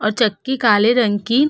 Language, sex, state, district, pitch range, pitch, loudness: Hindi, female, Uttar Pradesh, Hamirpur, 210-245 Hz, 230 Hz, -16 LUFS